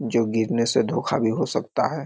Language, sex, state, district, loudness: Hindi, male, Bihar, Muzaffarpur, -23 LUFS